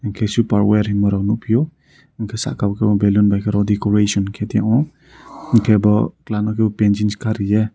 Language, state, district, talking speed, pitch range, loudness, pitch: Kokborok, Tripura, Dhalai, 155 wpm, 105-115 Hz, -17 LUFS, 105 Hz